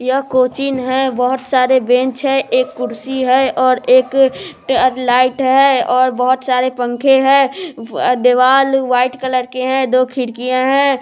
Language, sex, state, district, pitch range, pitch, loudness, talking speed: Hindi, female, Bihar, Sitamarhi, 255-265 Hz, 255 Hz, -14 LUFS, 160 wpm